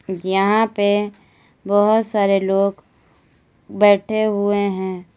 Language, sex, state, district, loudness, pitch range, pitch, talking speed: Hindi, female, Uttar Pradesh, Lalitpur, -18 LUFS, 195-210 Hz, 200 Hz, 95 wpm